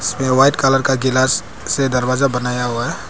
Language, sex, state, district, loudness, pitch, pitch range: Hindi, male, Arunachal Pradesh, Papum Pare, -16 LUFS, 130 Hz, 125-135 Hz